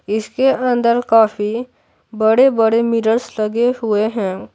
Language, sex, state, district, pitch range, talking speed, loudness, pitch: Hindi, male, Bihar, Patna, 215-240 Hz, 105 wpm, -16 LUFS, 225 Hz